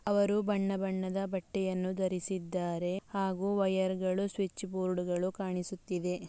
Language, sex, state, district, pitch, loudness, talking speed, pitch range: Kannada, female, Karnataka, Dakshina Kannada, 190 Hz, -33 LUFS, 95 wpm, 185-195 Hz